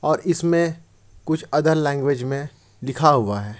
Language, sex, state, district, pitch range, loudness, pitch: Hindi, male, Jharkhand, Ranchi, 125-160 Hz, -21 LUFS, 140 Hz